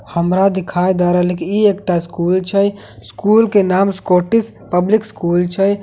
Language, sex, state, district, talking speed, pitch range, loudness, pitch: Maithili, male, Bihar, Katihar, 165 wpm, 180-200 Hz, -15 LUFS, 185 Hz